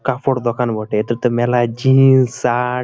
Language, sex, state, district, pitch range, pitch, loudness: Bengali, male, West Bengal, Malda, 120-130 Hz, 125 Hz, -16 LUFS